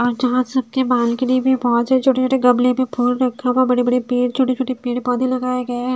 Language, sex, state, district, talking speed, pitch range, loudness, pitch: Hindi, female, Haryana, Charkhi Dadri, 220 wpm, 245-255 Hz, -18 LUFS, 250 Hz